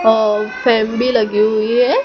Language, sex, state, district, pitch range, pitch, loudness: Hindi, male, Gujarat, Gandhinagar, 215-245 Hz, 225 Hz, -15 LUFS